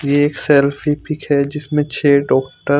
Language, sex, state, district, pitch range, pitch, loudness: Hindi, male, Punjab, Fazilka, 140-150 Hz, 145 Hz, -16 LUFS